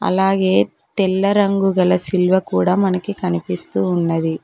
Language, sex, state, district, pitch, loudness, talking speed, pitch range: Telugu, female, Telangana, Mahabubabad, 185 Hz, -17 LUFS, 120 wpm, 165-195 Hz